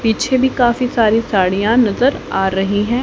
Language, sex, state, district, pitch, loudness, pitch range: Hindi, female, Haryana, Rohtak, 230 Hz, -15 LUFS, 205-245 Hz